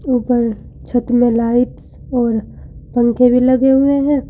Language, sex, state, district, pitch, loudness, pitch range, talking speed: Hindi, female, Uttar Pradesh, Saharanpur, 245 Hz, -15 LUFS, 240-260 Hz, 125 wpm